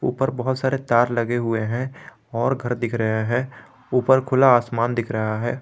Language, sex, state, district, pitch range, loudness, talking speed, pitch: Hindi, male, Jharkhand, Garhwa, 115-130 Hz, -21 LUFS, 190 wpm, 120 Hz